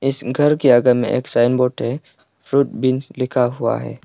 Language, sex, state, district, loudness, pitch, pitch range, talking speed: Hindi, male, Arunachal Pradesh, Lower Dibang Valley, -18 LUFS, 125 Hz, 125-135 Hz, 210 wpm